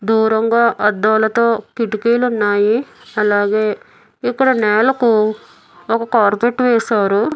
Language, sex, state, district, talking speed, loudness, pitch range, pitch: Telugu, female, Telangana, Hyderabad, 75 wpm, -15 LUFS, 210-235 Hz, 220 Hz